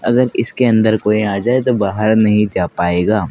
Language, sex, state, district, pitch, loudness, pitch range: Hindi, male, Madhya Pradesh, Dhar, 110 Hz, -14 LUFS, 105-120 Hz